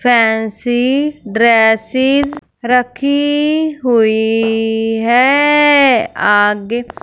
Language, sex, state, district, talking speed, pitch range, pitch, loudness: Hindi, female, Punjab, Fazilka, 50 wpm, 225-280 Hz, 240 Hz, -13 LUFS